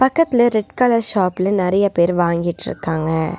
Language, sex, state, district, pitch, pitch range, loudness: Tamil, female, Tamil Nadu, Nilgiris, 190 Hz, 170-230 Hz, -17 LUFS